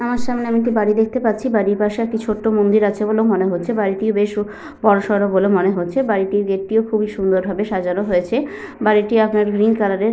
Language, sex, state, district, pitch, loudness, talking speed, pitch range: Bengali, female, Jharkhand, Sahebganj, 210 Hz, -18 LUFS, 205 wpm, 200-220 Hz